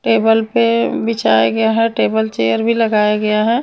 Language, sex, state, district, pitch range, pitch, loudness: Hindi, female, Punjab, Kapurthala, 210-230 Hz, 225 Hz, -15 LUFS